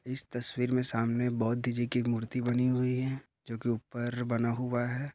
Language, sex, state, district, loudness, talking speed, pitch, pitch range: Hindi, male, Maharashtra, Dhule, -31 LUFS, 200 wpm, 120 Hz, 120-125 Hz